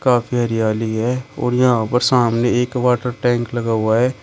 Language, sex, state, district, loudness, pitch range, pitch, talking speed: Hindi, male, Uttar Pradesh, Shamli, -18 LUFS, 115-125 Hz, 120 Hz, 185 wpm